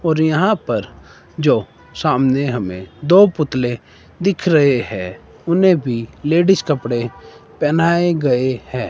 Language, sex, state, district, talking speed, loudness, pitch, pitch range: Hindi, male, Himachal Pradesh, Shimla, 120 wpm, -17 LUFS, 140 Hz, 120-170 Hz